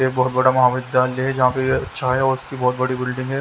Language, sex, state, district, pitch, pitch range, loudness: Hindi, male, Haryana, Jhajjar, 130 Hz, 125-130 Hz, -19 LUFS